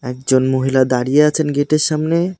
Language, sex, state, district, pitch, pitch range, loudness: Bengali, male, West Bengal, Cooch Behar, 145 Hz, 130-155 Hz, -15 LUFS